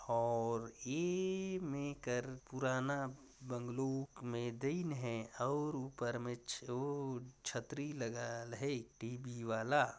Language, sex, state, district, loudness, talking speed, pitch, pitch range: Chhattisgarhi, male, Chhattisgarh, Jashpur, -41 LUFS, 110 wpm, 130 Hz, 120-140 Hz